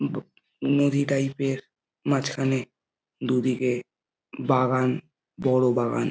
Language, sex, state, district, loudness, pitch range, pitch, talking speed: Bengali, male, West Bengal, Jhargram, -25 LUFS, 125-140 Hz, 130 Hz, 80 wpm